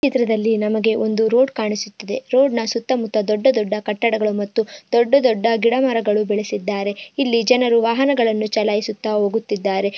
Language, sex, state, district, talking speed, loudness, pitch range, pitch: Kannada, female, Karnataka, Bijapur, 145 wpm, -18 LUFS, 210-240 Hz, 225 Hz